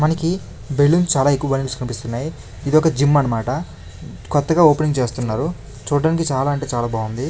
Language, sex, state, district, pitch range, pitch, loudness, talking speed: Telugu, male, Andhra Pradesh, Krishna, 125-155 Hz, 145 Hz, -19 LUFS, 130 wpm